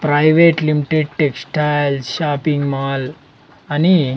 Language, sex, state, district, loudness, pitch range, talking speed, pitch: Telugu, male, Andhra Pradesh, Sri Satya Sai, -16 LUFS, 140-155 Hz, 85 wpm, 145 Hz